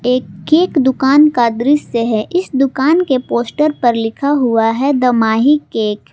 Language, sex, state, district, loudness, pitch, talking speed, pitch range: Hindi, female, Jharkhand, Palamu, -14 LUFS, 260 Hz, 175 wpm, 235-290 Hz